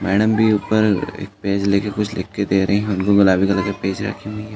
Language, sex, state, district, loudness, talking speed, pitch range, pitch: Hindi, male, Uttar Pradesh, Jalaun, -18 LUFS, 235 wpm, 95-105 Hz, 100 Hz